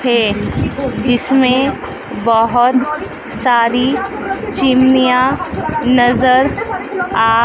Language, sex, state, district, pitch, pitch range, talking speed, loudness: Hindi, female, Madhya Pradesh, Dhar, 255 Hz, 240-260 Hz, 55 wpm, -14 LUFS